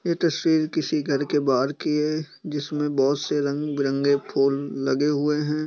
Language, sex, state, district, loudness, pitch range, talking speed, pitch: Hindi, male, Bihar, East Champaran, -24 LUFS, 140-150 Hz, 170 wpm, 145 Hz